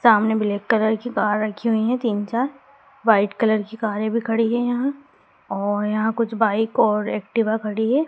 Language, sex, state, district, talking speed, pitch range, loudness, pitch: Hindi, female, Madhya Pradesh, Dhar, 195 wpm, 215-235 Hz, -21 LUFS, 220 Hz